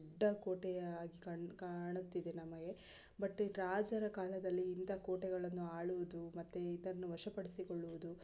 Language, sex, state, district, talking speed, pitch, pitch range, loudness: Kannada, female, Karnataka, Gulbarga, 115 wpm, 180 Hz, 170-190 Hz, -44 LUFS